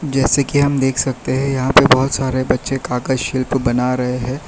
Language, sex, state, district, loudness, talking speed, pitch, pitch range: Hindi, male, Gujarat, Valsad, -16 LUFS, 215 wpm, 130 Hz, 130-135 Hz